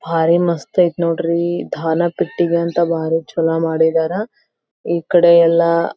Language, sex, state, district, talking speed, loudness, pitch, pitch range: Kannada, female, Karnataka, Belgaum, 50 wpm, -16 LUFS, 170 Hz, 165-170 Hz